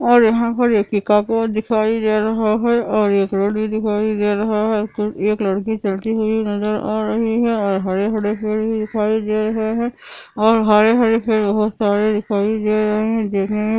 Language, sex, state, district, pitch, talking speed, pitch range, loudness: Hindi, female, Andhra Pradesh, Anantapur, 215 Hz, 40 wpm, 210-220 Hz, -18 LUFS